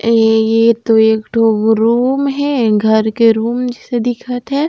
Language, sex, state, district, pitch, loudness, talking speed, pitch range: Chhattisgarhi, female, Chhattisgarh, Raigarh, 230 Hz, -13 LUFS, 180 wpm, 220-245 Hz